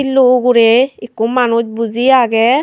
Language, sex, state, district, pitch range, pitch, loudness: Chakma, female, Tripura, Unakoti, 230-255 Hz, 240 Hz, -12 LUFS